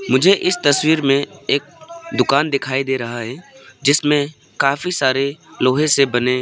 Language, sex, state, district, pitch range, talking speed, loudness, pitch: Hindi, male, Arunachal Pradesh, Papum Pare, 130-160 Hz, 150 wpm, -17 LUFS, 140 Hz